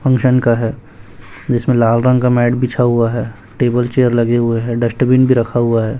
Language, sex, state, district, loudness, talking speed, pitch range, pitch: Hindi, male, Chhattisgarh, Raipur, -14 LUFS, 210 wpm, 115-125 Hz, 120 Hz